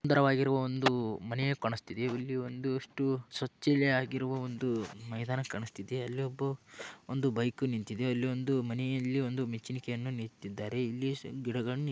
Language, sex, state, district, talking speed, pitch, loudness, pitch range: Kannada, male, Karnataka, Dharwad, 130 wpm, 130 Hz, -34 LUFS, 120-135 Hz